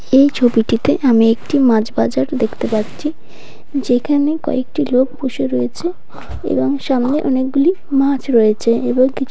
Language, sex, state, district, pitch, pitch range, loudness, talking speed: Bengali, female, West Bengal, North 24 Parganas, 260 Hz, 230-280 Hz, -16 LUFS, 130 wpm